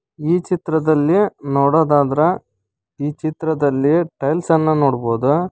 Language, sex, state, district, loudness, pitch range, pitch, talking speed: Kannada, male, Karnataka, Koppal, -17 LUFS, 140-160 Hz, 150 Hz, 75 wpm